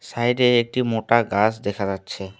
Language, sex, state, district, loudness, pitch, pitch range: Bengali, male, West Bengal, Alipurduar, -21 LUFS, 110 Hz, 100-120 Hz